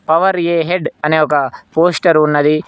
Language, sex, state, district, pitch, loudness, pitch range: Telugu, male, Telangana, Mahabubabad, 160 Hz, -14 LUFS, 155-170 Hz